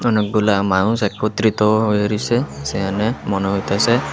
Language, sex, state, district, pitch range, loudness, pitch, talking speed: Bengali, male, Tripura, West Tripura, 100-110 Hz, -18 LUFS, 105 Hz, 115 wpm